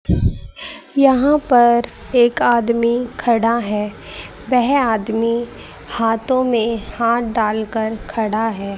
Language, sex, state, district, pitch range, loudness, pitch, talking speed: Hindi, female, Haryana, Charkhi Dadri, 225-245 Hz, -17 LUFS, 235 Hz, 95 wpm